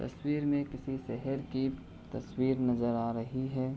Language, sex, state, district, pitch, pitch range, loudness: Hindi, male, Uttar Pradesh, Hamirpur, 130 Hz, 120-135 Hz, -34 LUFS